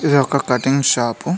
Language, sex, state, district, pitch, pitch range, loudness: Telugu, male, Telangana, Mahabubabad, 135 Hz, 125-140 Hz, -17 LUFS